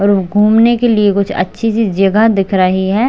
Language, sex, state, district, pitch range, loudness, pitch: Hindi, female, Chhattisgarh, Bilaspur, 195-225 Hz, -12 LUFS, 205 Hz